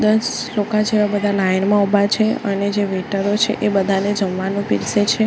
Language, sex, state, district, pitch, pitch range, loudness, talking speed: Gujarati, female, Gujarat, Gandhinagar, 205 Hz, 195-215 Hz, -18 LUFS, 195 wpm